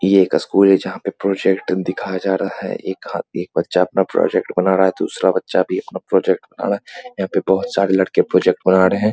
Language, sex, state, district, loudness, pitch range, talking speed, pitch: Hindi, male, Bihar, Muzaffarpur, -18 LUFS, 95-100 Hz, 245 wpm, 95 Hz